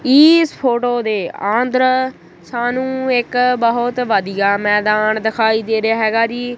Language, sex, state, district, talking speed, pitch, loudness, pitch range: Punjabi, female, Punjab, Kapurthala, 130 wpm, 240 Hz, -15 LUFS, 220-250 Hz